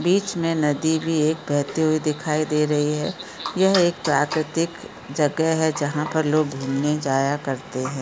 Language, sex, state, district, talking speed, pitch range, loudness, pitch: Hindi, female, Chhattisgarh, Bilaspur, 170 wpm, 145-160 Hz, -22 LUFS, 150 Hz